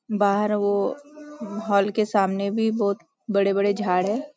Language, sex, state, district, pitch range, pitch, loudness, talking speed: Hindi, female, Maharashtra, Nagpur, 200-220 Hz, 205 Hz, -23 LUFS, 150 wpm